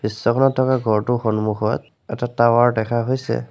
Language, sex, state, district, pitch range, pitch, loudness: Assamese, male, Assam, Sonitpur, 110-120 Hz, 120 Hz, -19 LUFS